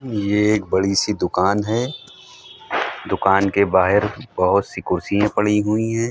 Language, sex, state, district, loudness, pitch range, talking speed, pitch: Hindi, male, Uttar Pradesh, Hamirpur, -19 LUFS, 100-110 Hz, 125 wpm, 105 Hz